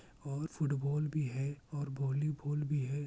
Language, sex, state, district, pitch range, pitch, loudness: Urdu, male, Bihar, Kishanganj, 140-150 Hz, 145 Hz, -37 LUFS